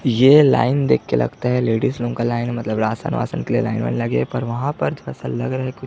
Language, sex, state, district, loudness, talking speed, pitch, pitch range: Hindi, male, Chhattisgarh, Jashpur, -19 LUFS, 295 wpm, 120 Hz, 110-130 Hz